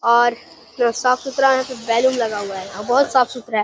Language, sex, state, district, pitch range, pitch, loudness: Hindi, male, Bihar, Gaya, 220-255 Hz, 240 Hz, -18 LUFS